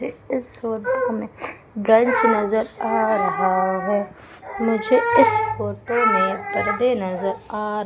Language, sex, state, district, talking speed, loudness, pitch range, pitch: Hindi, female, Madhya Pradesh, Umaria, 130 wpm, -20 LUFS, 200-245 Hz, 220 Hz